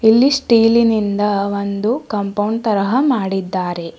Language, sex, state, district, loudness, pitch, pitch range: Kannada, female, Karnataka, Bidar, -16 LUFS, 210 Hz, 200-230 Hz